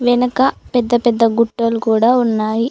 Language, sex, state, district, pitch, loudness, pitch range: Telugu, female, Telangana, Mahabubabad, 235 Hz, -15 LUFS, 230-245 Hz